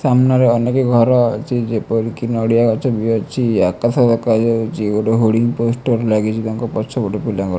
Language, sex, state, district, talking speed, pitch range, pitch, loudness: Odia, male, Odisha, Malkangiri, 175 wpm, 110-120 Hz, 115 Hz, -16 LUFS